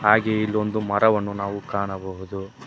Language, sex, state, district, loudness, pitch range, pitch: Kannada, male, Karnataka, Koppal, -23 LUFS, 100-110 Hz, 100 Hz